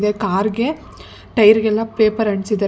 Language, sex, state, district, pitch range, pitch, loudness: Kannada, female, Karnataka, Bangalore, 210-225 Hz, 215 Hz, -16 LUFS